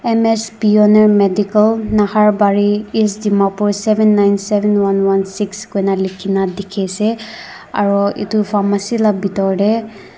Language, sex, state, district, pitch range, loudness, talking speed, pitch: Nagamese, female, Nagaland, Dimapur, 200-215 Hz, -14 LUFS, 135 wpm, 205 Hz